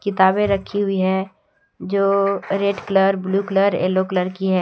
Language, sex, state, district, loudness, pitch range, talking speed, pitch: Hindi, female, Jharkhand, Deoghar, -19 LUFS, 190-200 Hz, 170 wpm, 195 Hz